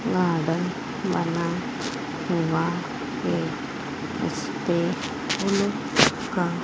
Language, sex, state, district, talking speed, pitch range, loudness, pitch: Hindi, female, Madhya Pradesh, Dhar, 65 wpm, 170-200 Hz, -26 LUFS, 180 Hz